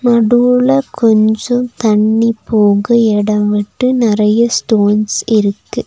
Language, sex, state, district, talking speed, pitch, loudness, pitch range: Tamil, female, Tamil Nadu, Nilgiris, 90 wpm, 220 Hz, -12 LUFS, 210-240 Hz